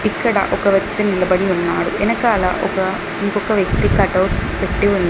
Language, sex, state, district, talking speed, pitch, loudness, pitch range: Telugu, female, Telangana, Mahabubabad, 140 wpm, 195 Hz, -17 LUFS, 185-205 Hz